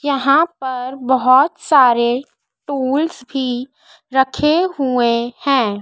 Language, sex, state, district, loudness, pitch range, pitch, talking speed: Hindi, female, Madhya Pradesh, Dhar, -16 LUFS, 250-290 Hz, 265 Hz, 95 wpm